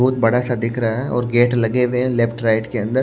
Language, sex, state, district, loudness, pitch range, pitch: Hindi, male, Maharashtra, Washim, -18 LUFS, 115-125 Hz, 120 Hz